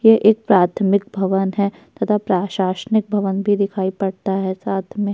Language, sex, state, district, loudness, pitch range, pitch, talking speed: Hindi, female, Uttar Pradesh, Jyotiba Phule Nagar, -19 LUFS, 190-210 Hz, 200 Hz, 165 wpm